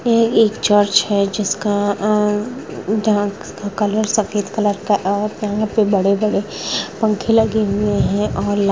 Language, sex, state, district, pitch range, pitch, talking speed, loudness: Hindi, female, Chhattisgarh, Rajnandgaon, 205-215 Hz, 210 Hz, 140 wpm, -17 LUFS